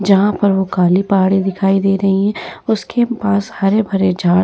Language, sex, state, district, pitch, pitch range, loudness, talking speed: Hindi, female, Bihar, Vaishali, 195 Hz, 190-205 Hz, -15 LUFS, 190 wpm